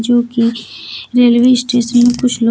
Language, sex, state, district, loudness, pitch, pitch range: Hindi, female, Bihar, Kaimur, -12 LUFS, 240 Hz, 235-245 Hz